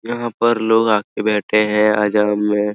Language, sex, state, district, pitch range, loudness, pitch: Hindi, male, Bihar, Araria, 105-110 Hz, -16 LUFS, 105 Hz